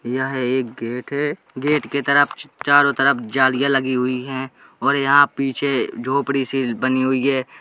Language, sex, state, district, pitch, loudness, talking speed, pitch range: Hindi, male, Uttar Pradesh, Jalaun, 135 Hz, -19 LUFS, 175 wpm, 130-140 Hz